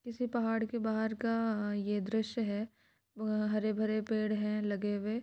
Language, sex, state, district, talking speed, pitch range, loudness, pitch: Hindi, female, Bihar, Gaya, 170 wpm, 210-225 Hz, -34 LUFS, 215 Hz